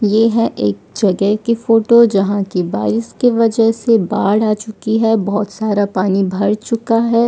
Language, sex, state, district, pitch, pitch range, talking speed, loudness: Hindi, female, Odisha, Sambalpur, 215 Hz, 200-230 Hz, 190 wpm, -15 LUFS